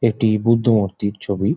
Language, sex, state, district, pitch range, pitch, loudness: Bengali, male, West Bengal, Jhargram, 100-115 Hz, 105 Hz, -18 LUFS